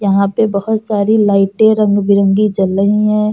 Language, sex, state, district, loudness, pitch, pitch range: Hindi, female, Uttar Pradesh, Jalaun, -12 LUFS, 205 Hz, 200-215 Hz